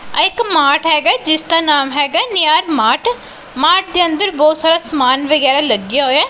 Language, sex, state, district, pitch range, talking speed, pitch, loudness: Punjabi, female, Punjab, Pathankot, 285-335 Hz, 210 wpm, 310 Hz, -12 LUFS